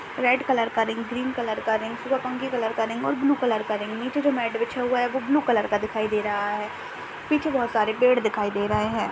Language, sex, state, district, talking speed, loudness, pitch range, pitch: Hindi, female, Maharashtra, Dhule, 265 wpm, -24 LUFS, 215-255 Hz, 230 Hz